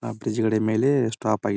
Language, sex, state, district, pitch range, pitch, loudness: Kannada, male, Karnataka, Belgaum, 110-115 Hz, 110 Hz, -23 LUFS